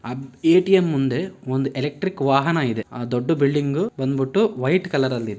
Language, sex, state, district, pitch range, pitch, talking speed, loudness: Kannada, male, Karnataka, Bellary, 130-170 Hz, 135 Hz, 165 wpm, -21 LUFS